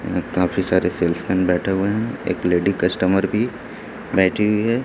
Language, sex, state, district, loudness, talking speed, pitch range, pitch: Hindi, male, Chhattisgarh, Raipur, -20 LUFS, 175 wpm, 90-105 Hz, 95 Hz